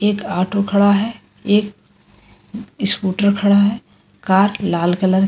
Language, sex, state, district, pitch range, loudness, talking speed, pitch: Hindi, female, Goa, North and South Goa, 190-205 Hz, -17 LUFS, 135 wpm, 200 Hz